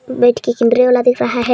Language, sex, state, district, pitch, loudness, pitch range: Hindi, male, Chhattisgarh, Balrampur, 245 Hz, -13 LUFS, 240-250 Hz